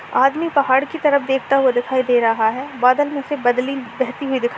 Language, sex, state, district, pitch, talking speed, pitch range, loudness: Hindi, female, Maharashtra, Sindhudurg, 265 Hz, 210 wpm, 245-280 Hz, -18 LUFS